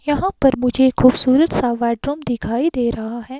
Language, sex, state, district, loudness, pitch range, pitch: Hindi, female, Himachal Pradesh, Shimla, -17 LUFS, 240-275 Hz, 255 Hz